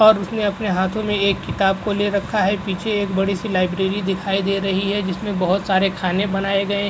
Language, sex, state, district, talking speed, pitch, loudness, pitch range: Hindi, male, Uttar Pradesh, Jalaun, 235 wpm, 195 Hz, -20 LUFS, 190-205 Hz